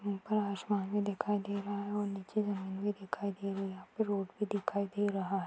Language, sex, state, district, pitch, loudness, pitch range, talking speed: Hindi, female, Uttar Pradesh, Deoria, 200 Hz, -36 LUFS, 195-205 Hz, 250 wpm